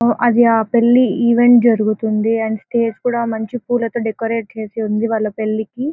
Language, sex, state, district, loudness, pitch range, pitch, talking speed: Telugu, female, Andhra Pradesh, Anantapur, -16 LUFS, 220-235 Hz, 230 Hz, 160 wpm